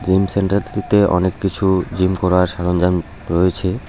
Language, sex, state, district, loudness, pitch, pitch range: Bengali, male, West Bengal, Cooch Behar, -17 LUFS, 95 Hz, 90-100 Hz